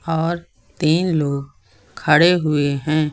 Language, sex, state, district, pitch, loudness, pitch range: Hindi, male, Uttar Pradesh, Lucknow, 155 Hz, -18 LUFS, 140-165 Hz